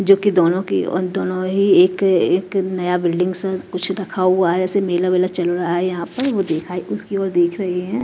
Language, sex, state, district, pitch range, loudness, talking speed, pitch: Hindi, female, Chhattisgarh, Raipur, 180-195 Hz, -18 LUFS, 225 wpm, 185 Hz